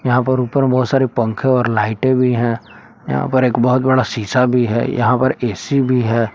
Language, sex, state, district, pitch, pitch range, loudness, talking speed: Hindi, male, Jharkhand, Palamu, 125 Hz, 115-130 Hz, -16 LUFS, 215 wpm